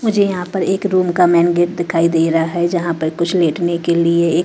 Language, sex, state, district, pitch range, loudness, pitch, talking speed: Hindi, female, Haryana, Rohtak, 170-180 Hz, -16 LUFS, 175 Hz, 240 wpm